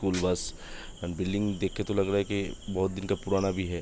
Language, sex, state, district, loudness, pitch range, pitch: Hindi, male, Uttar Pradesh, Budaun, -30 LUFS, 90-100 Hz, 95 Hz